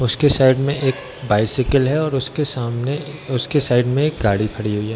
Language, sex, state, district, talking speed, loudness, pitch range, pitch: Hindi, male, Bihar, Darbhanga, 205 wpm, -18 LUFS, 120-140 Hz, 130 Hz